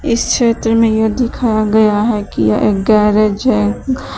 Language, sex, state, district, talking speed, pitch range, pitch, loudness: Hindi, female, Uttar Pradesh, Shamli, 170 wpm, 210-235 Hz, 220 Hz, -13 LUFS